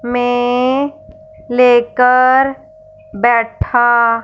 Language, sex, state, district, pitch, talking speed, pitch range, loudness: Hindi, female, Punjab, Fazilka, 250 Hz, 40 wpm, 240-280 Hz, -13 LUFS